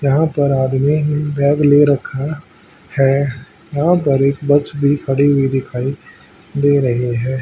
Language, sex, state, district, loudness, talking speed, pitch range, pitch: Hindi, male, Haryana, Charkhi Dadri, -15 LUFS, 155 wpm, 135-145 Hz, 140 Hz